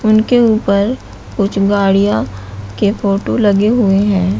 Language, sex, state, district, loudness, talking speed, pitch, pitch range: Hindi, female, Uttar Pradesh, Shamli, -13 LUFS, 125 wpm, 200 Hz, 195-215 Hz